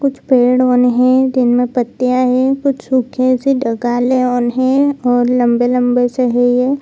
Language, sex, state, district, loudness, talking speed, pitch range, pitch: Hindi, female, Bihar, Jamui, -13 LUFS, 150 wpm, 245-260 Hz, 250 Hz